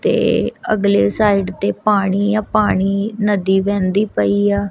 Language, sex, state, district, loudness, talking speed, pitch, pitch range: Punjabi, female, Punjab, Kapurthala, -16 LUFS, 125 wpm, 200 Hz, 190-210 Hz